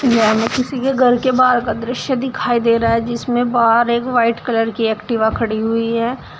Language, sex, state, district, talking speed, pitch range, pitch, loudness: Hindi, female, Uttar Pradesh, Shamli, 215 wpm, 230-250 Hz, 235 Hz, -16 LUFS